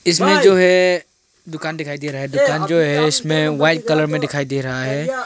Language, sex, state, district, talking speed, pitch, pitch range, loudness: Hindi, male, Arunachal Pradesh, Longding, 215 wpm, 155 Hz, 145-170 Hz, -16 LUFS